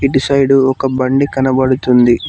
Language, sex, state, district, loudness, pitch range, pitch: Telugu, male, Telangana, Mahabubabad, -12 LUFS, 130-135 Hz, 130 Hz